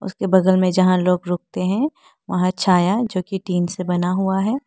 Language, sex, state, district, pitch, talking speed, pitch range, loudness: Hindi, female, Arunachal Pradesh, Lower Dibang Valley, 185 Hz, 220 wpm, 180-195 Hz, -19 LUFS